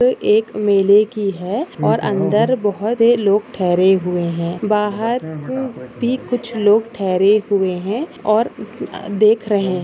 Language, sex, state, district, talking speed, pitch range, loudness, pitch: Hindi, female, Chhattisgarh, Kabirdham, 145 wpm, 190-225 Hz, -17 LUFS, 210 Hz